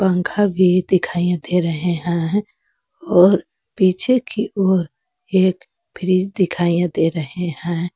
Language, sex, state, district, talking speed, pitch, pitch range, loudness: Hindi, female, Jharkhand, Garhwa, 120 wpm, 185 Hz, 175-195 Hz, -18 LUFS